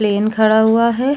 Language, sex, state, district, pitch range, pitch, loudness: Hindi, female, Chhattisgarh, Bilaspur, 215-235 Hz, 220 Hz, -14 LUFS